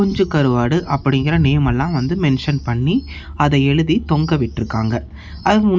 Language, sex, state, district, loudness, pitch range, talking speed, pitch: Tamil, male, Tamil Nadu, Namakkal, -17 LUFS, 120-160 Hz, 145 wpm, 140 Hz